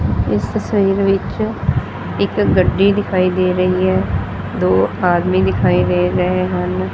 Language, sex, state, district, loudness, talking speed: Punjabi, female, Punjab, Fazilka, -16 LUFS, 130 wpm